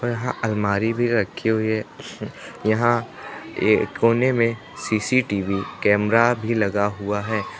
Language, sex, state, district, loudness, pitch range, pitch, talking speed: Hindi, male, Uttar Pradesh, Lucknow, -21 LUFS, 105-115 Hz, 110 Hz, 125 wpm